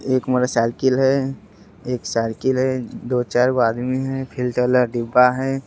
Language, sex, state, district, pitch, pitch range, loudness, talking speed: Angika, male, Bihar, Begusarai, 125 Hz, 125-130 Hz, -20 LUFS, 200 wpm